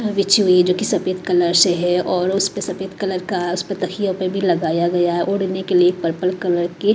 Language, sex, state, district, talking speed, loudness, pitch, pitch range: Hindi, female, Maharashtra, Mumbai Suburban, 250 wpm, -18 LUFS, 185 Hz, 175-195 Hz